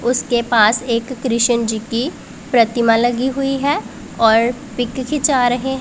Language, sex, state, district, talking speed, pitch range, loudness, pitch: Hindi, female, Punjab, Pathankot, 145 wpm, 230-265 Hz, -17 LUFS, 245 Hz